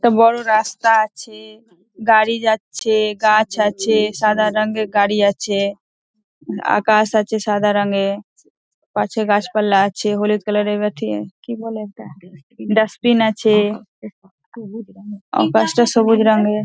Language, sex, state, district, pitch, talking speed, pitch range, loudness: Bengali, female, West Bengal, Dakshin Dinajpur, 215 Hz, 115 wpm, 205-220 Hz, -17 LUFS